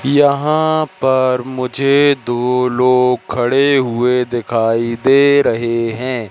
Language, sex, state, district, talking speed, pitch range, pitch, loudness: Hindi, male, Madhya Pradesh, Katni, 105 wpm, 120-140 Hz, 125 Hz, -14 LUFS